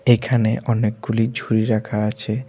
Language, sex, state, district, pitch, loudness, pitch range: Bengali, male, Tripura, West Tripura, 115 Hz, -20 LUFS, 110-120 Hz